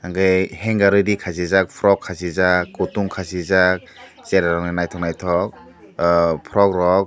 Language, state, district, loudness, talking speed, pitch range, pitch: Kokborok, Tripura, Dhalai, -19 LUFS, 95 wpm, 85-95 Hz, 90 Hz